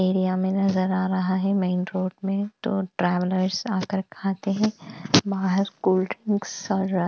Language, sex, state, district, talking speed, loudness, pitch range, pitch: Hindi, female, Bihar, West Champaran, 160 wpm, -24 LUFS, 185-195 Hz, 190 Hz